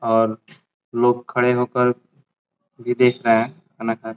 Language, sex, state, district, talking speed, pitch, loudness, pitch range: Hindi, male, Bihar, Gopalganj, 185 wpm, 120 Hz, -20 LUFS, 115-125 Hz